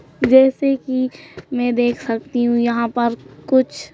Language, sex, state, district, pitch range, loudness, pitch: Hindi, female, Madhya Pradesh, Bhopal, 235-260 Hz, -18 LUFS, 245 Hz